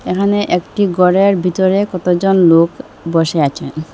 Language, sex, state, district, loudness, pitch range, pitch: Bengali, female, Assam, Hailakandi, -13 LUFS, 170-195 Hz, 180 Hz